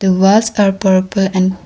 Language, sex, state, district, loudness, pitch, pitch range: English, female, Arunachal Pradesh, Lower Dibang Valley, -13 LUFS, 190 Hz, 190-200 Hz